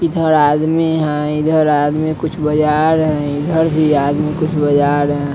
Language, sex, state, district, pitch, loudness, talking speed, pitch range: Hindi, male, Bihar, Patna, 150 Hz, -15 LUFS, 180 wpm, 145-160 Hz